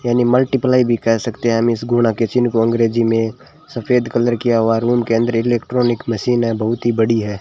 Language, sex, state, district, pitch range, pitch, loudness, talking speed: Hindi, male, Rajasthan, Bikaner, 115-120 Hz, 120 Hz, -16 LUFS, 235 wpm